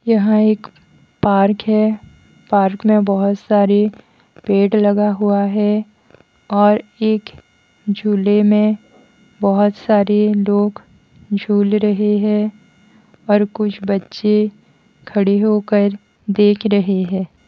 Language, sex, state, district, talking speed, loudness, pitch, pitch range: Hindi, female, Haryana, Jhajjar, 105 wpm, -16 LUFS, 210 Hz, 205-215 Hz